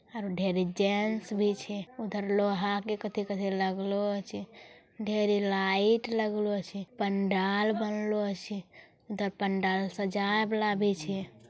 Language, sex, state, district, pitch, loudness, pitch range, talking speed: Angika, female, Bihar, Bhagalpur, 200 Hz, -30 LUFS, 195-210 Hz, 145 wpm